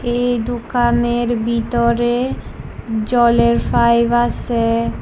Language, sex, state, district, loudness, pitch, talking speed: Bengali, female, Tripura, West Tripura, -16 LUFS, 235 Hz, 70 wpm